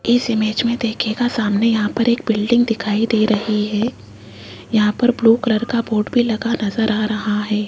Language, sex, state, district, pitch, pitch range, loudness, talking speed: Hindi, female, Rajasthan, Jaipur, 220 Hz, 210-235 Hz, -18 LUFS, 195 wpm